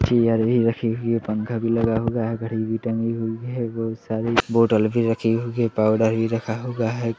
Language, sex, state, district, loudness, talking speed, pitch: Hindi, male, Chhattisgarh, Rajnandgaon, -22 LUFS, 225 wpm, 115 Hz